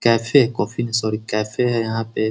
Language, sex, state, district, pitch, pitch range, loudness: Hindi, male, Bihar, Muzaffarpur, 115 Hz, 110-120 Hz, -20 LUFS